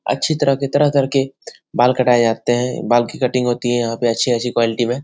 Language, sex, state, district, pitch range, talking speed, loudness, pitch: Hindi, male, Bihar, Jahanabad, 120-135 Hz, 215 wpm, -17 LUFS, 125 Hz